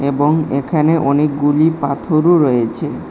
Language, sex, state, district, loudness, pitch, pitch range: Bengali, male, Tripura, West Tripura, -14 LUFS, 145 Hz, 140-155 Hz